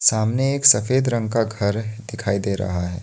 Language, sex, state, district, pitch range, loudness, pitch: Hindi, male, Assam, Kamrup Metropolitan, 100-120 Hz, -20 LUFS, 110 Hz